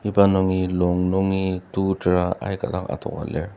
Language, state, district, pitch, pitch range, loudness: Ao, Nagaland, Dimapur, 95 Hz, 90-95 Hz, -22 LUFS